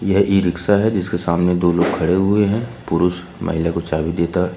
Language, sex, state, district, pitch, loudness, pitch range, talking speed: Hindi, male, Uttar Pradesh, Lucknow, 90 Hz, -18 LUFS, 85-95 Hz, 210 wpm